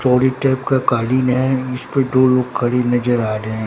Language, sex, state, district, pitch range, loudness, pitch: Hindi, male, Bihar, Katihar, 120-130 Hz, -17 LUFS, 125 Hz